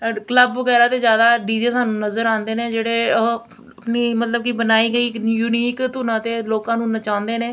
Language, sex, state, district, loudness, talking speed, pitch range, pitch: Punjabi, female, Punjab, Kapurthala, -18 LUFS, 185 wpm, 225-240 Hz, 230 Hz